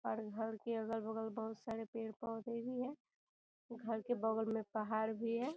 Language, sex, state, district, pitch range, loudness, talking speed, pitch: Hindi, female, Bihar, Gopalganj, 220-235 Hz, -42 LUFS, 170 wpm, 225 Hz